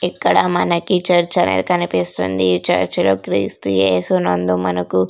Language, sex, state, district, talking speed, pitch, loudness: Telugu, female, Andhra Pradesh, Sri Satya Sai, 140 wpm, 95 Hz, -16 LUFS